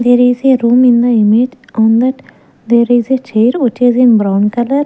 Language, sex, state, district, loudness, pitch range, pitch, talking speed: English, female, Maharashtra, Gondia, -11 LUFS, 230-255 Hz, 245 Hz, 220 wpm